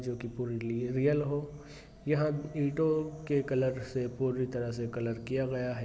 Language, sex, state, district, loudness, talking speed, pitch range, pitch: Hindi, male, Bihar, Vaishali, -33 LUFS, 175 wpm, 125-145 Hz, 130 Hz